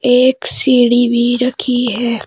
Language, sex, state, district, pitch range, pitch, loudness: Hindi, female, Uttar Pradesh, Shamli, 240-250 Hz, 245 Hz, -13 LUFS